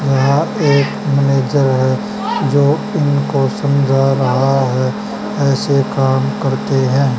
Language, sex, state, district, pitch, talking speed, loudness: Hindi, male, Haryana, Charkhi Dadri, 135 Hz, 110 wpm, -15 LUFS